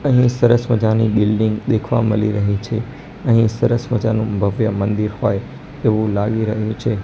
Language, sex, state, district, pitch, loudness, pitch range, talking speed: Gujarati, male, Gujarat, Gandhinagar, 110 Hz, -18 LUFS, 105-120 Hz, 155 wpm